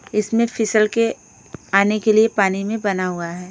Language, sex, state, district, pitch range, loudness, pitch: Hindi, female, Odisha, Khordha, 180-220 Hz, -19 LUFS, 210 Hz